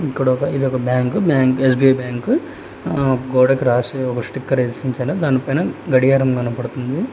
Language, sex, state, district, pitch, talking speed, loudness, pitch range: Telugu, male, Telangana, Hyderabad, 130 Hz, 125 wpm, -18 LUFS, 125-135 Hz